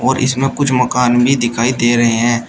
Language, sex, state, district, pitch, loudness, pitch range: Hindi, male, Uttar Pradesh, Shamli, 125 Hz, -14 LUFS, 120-130 Hz